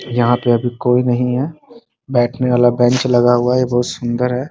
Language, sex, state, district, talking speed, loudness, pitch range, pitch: Hindi, male, Bihar, Muzaffarpur, 215 wpm, -15 LUFS, 120-125 Hz, 125 Hz